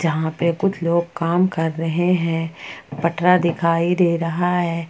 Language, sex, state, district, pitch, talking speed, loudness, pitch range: Hindi, female, Jharkhand, Ranchi, 170 Hz, 160 wpm, -20 LUFS, 165-175 Hz